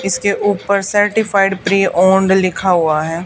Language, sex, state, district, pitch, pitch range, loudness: Hindi, female, Haryana, Charkhi Dadri, 195 Hz, 185-200 Hz, -14 LUFS